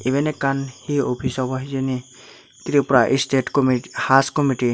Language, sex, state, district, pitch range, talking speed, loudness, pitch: Chakma, male, Tripura, Unakoti, 130-140 Hz, 125 wpm, -20 LUFS, 135 Hz